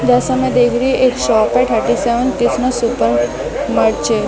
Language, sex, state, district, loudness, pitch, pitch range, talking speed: Hindi, female, Delhi, New Delhi, -14 LUFS, 245 Hz, 225-255 Hz, 170 wpm